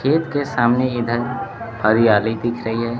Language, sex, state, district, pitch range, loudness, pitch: Hindi, male, Bihar, Kaimur, 115-125 Hz, -19 LUFS, 120 Hz